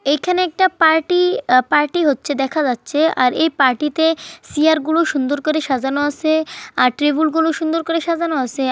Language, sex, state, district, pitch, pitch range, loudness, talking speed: Bengali, female, West Bengal, Kolkata, 310 Hz, 280-325 Hz, -17 LUFS, 170 wpm